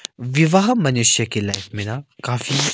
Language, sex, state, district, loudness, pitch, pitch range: Hindi, male, Himachal Pradesh, Shimla, -18 LUFS, 125 Hz, 115-150 Hz